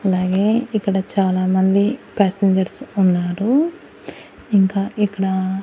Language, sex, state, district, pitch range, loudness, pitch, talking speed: Telugu, female, Andhra Pradesh, Annamaya, 190-210 Hz, -18 LUFS, 195 Hz, 75 wpm